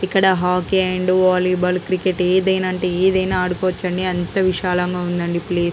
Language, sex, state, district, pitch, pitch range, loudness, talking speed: Telugu, female, Andhra Pradesh, Guntur, 185 Hz, 180-185 Hz, -18 LUFS, 145 wpm